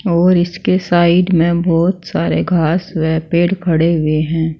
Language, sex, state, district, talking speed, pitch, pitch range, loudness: Hindi, female, Uttar Pradesh, Saharanpur, 155 wpm, 170 Hz, 160-180 Hz, -14 LUFS